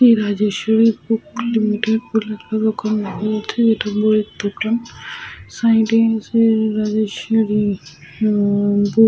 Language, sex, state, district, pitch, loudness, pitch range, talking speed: Bengali, female, Jharkhand, Sahebganj, 215 Hz, -18 LUFS, 210-225 Hz, 90 wpm